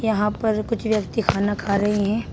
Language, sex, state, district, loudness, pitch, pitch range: Hindi, female, Uttar Pradesh, Shamli, -22 LUFS, 215 Hz, 205-220 Hz